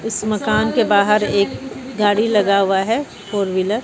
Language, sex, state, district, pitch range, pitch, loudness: Hindi, female, Bihar, Katihar, 200-220 Hz, 210 Hz, -17 LUFS